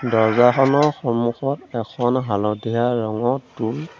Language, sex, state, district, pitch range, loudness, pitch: Assamese, male, Assam, Sonitpur, 110-130 Hz, -20 LUFS, 120 Hz